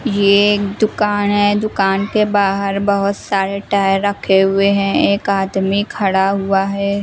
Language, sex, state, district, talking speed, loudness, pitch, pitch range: Hindi, female, Bihar, West Champaran, 145 wpm, -15 LUFS, 200 Hz, 195-205 Hz